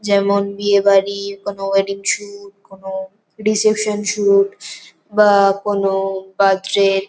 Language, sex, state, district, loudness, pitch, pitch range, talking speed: Bengali, female, West Bengal, North 24 Parganas, -17 LUFS, 200 Hz, 195-210 Hz, 110 wpm